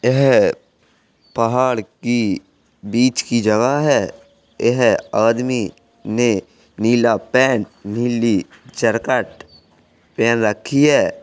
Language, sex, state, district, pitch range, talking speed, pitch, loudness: Hindi, male, Uttar Pradesh, Jalaun, 110-125 Hz, 90 wpm, 115 Hz, -17 LUFS